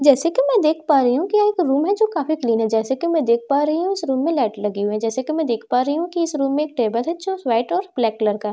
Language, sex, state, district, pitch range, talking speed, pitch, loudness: Hindi, female, Bihar, Katihar, 235-335 Hz, 350 wpm, 285 Hz, -20 LUFS